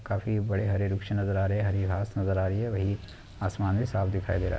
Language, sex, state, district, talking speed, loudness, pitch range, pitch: Hindi, male, Chhattisgarh, Kabirdham, 285 wpm, -29 LUFS, 95-105 Hz, 100 Hz